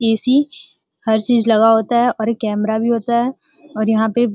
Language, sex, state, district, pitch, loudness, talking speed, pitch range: Hindi, female, Uttar Pradesh, Gorakhpur, 230 Hz, -16 LUFS, 220 wpm, 220-240 Hz